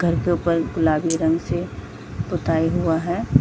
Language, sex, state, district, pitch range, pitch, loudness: Hindi, female, Jharkhand, Jamtara, 160-170 Hz, 165 Hz, -21 LUFS